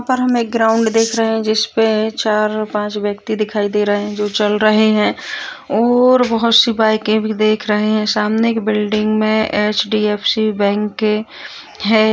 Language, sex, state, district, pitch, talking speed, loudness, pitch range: Hindi, female, Bihar, Kishanganj, 215 Hz, 175 wpm, -15 LUFS, 210-225 Hz